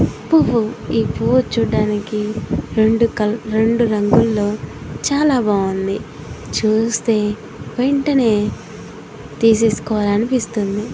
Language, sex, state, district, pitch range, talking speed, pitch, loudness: Telugu, female, Andhra Pradesh, Guntur, 210-235 Hz, 70 wpm, 220 Hz, -17 LUFS